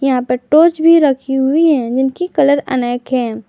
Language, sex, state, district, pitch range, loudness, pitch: Hindi, female, Jharkhand, Garhwa, 250-305 Hz, -13 LUFS, 270 Hz